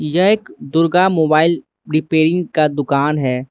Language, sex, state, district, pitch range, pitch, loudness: Hindi, male, Arunachal Pradesh, Lower Dibang Valley, 150-170 Hz, 155 Hz, -16 LUFS